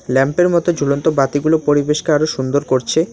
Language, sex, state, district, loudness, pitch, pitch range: Bengali, male, West Bengal, Alipurduar, -16 LUFS, 145 Hz, 140-160 Hz